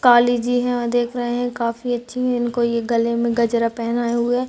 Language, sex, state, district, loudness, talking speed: Hindi, female, Chhattisgarh, Raigarh, -20 LUFS, 225 wpm